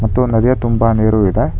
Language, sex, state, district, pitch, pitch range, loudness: Kannada, male, Karnataka, Bangalore, 115 Hz, 110-120 Hz, -14 LUFS